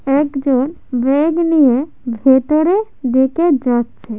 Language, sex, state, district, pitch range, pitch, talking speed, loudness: Bengali, female, West Bengal, Jhargram, 255-310 Hz, 275 Hz, 85 wpm, -15 LUFS